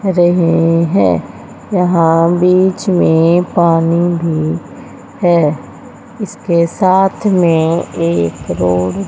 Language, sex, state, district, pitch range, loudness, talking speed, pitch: Hindi, female, Haryana, Rohtak, 160-180 Hz, -12 LUFS, 90 wpm, 170 Hz